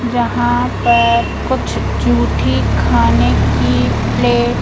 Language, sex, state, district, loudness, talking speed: Hindi, female, Madhya Pradesh, Katni, -14 LUFS, 105 wpm